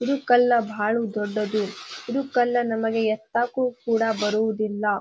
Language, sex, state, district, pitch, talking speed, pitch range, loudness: Kannada, female, Karnataka, Bijapur, 225 Hz, 120 wpm, 215-245 Hz, -23 LUFS